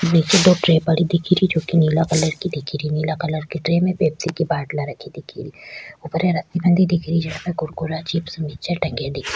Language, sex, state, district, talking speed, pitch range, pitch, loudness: Rajasthani, female, Rajasthan, Churu, 235 wpm, 155-175 Hz, 165 Hz, -20 LUFS